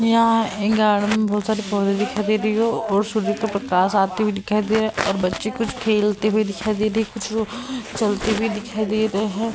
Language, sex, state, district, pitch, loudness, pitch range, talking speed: Hindi, female, Uttar Pradesh, Hamirpur, 215 Hz, -21 LUFS, 210-220 Hz, 225 wpm